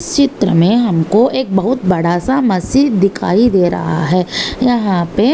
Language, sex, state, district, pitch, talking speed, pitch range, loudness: Hindi, female, Maharashtra, Nagpur, 200 Hz, 170 wpm, 180-250 Hz, -13 LUFS